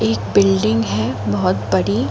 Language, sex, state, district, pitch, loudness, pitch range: Hindi, female, Uttar Pradesh, Jalaun, 105 Hz, -17 LUFS, 100-110 Hz